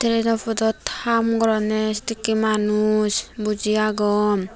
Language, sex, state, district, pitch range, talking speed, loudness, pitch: Chakma, female, Tripura, Unakoti, 210-225 Hz, 90 wpm, -21 LUFS, 215 Hz